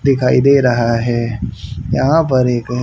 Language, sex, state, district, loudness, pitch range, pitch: Hindi, male, Haryana, Charkhi Dadri, -14 LUFS, 120-135 Hz, 125 Hz